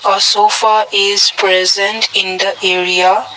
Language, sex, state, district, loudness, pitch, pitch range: English, male, Assam, Kamrup Metropolitan, -11 LUFS, 195 Hz, 185-205 Hz